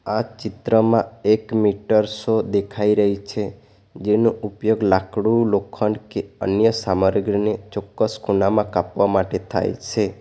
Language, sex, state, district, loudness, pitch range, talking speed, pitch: Gujarati, male, Gujarat, Valsad, -20 LUFS, 100-110 Hz, 125 wpm, 105 Hz